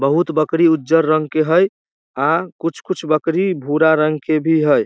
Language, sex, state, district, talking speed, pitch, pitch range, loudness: Maithili, male, Bihar, Samastipur, 175 wpm, 160 Hz, 155-165 Hz, -17 LUFS